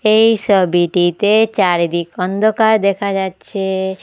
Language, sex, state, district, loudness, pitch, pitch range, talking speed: Bengali, female, Assam, Hailakandi, -15 LUFS, 195 Hz, 180-215 Hz, 90 wpm